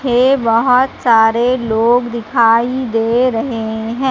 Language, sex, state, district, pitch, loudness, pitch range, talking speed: Hindi, female, Madhya Pradesh, Katni, 235 Hz, -14 LUFS, 225-250 Hz, 115 wpm